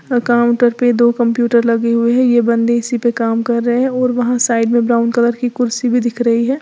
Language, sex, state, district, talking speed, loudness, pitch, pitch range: Hindi, female, Uttar Pradesh, Lalitpur, 255 wpm, -14 LUFS, 240 Hz, 235-245 Hz